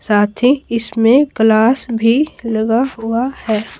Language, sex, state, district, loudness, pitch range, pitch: Hindi, female, Bihar, Patna, -15 LUFS, 220-250 Hz, 230 Hz